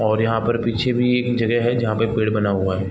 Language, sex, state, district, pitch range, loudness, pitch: Hindi, male, Bihar, Gopalganj, 110-120 Hz, -20 LUFS, 115 Hz